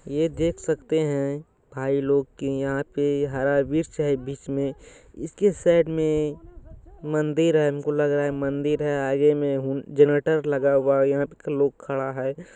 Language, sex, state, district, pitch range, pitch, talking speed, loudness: Maithili, male, Bihar, Supaul, 140-155 Hz, 145 Hz, 165 wpm, -24 LUFS